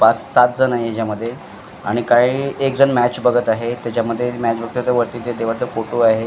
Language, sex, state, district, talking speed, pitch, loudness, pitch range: Marathi, male, Maharashtra, Mumbai Suburban, 190 wpm, 120 Hz, -18 LUFS, 115-125 Hz